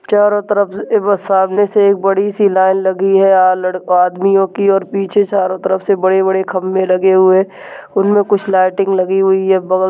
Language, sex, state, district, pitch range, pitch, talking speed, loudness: Hindi, male, Chhattisgarh, Balrampur, 190-200 Hz, 195 Hz, 190 wpm, -13 LUFS